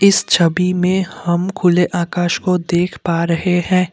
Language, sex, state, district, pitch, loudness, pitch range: Hindi, male, Assam, Kamrup Metropolitan, 180 Hz, -16 LUFS, 170-185 Hz